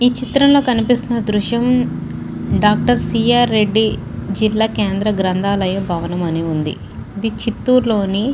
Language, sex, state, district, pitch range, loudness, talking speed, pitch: Telugu, female, Andhra Pradesh, Chittoor, 195-245 Hz, -16 LUFS, 115 wpm, 215 Hz